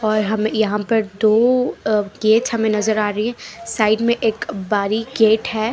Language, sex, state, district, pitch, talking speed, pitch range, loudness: Hindi, female, Punjab, Pathankot, 220 Hz, 190 wpm, 215-230 Hz, -18 LUFS